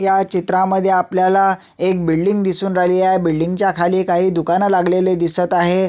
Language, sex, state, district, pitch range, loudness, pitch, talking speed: Marathi, male, Maharashtra, Sindhudurg, 180-190 Hz, -16 LUFS, 185 Hz, 175 wpm